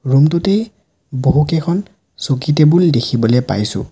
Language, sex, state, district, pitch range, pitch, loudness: Assamese, male, Assam, Sonitpur, 130-170 Hz, 150 Hz, -15 LUFS